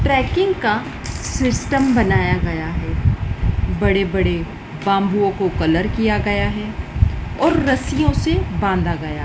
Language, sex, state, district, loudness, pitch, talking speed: Hindi, female, Madhya Pradesh, Dhar, -19 LUFS, 190 Hz, 125 wpm